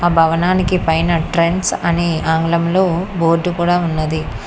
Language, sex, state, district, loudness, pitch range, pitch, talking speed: Telugu, female, Telangana, Hyderabad, -16 LUFS, 160-175 Hz, 170 Hz, 105 wpm